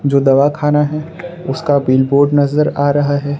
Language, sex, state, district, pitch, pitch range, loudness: Hindi, male, Gujarat, Valsad, 145 Hz, 140-150 Hz, -14 LUFS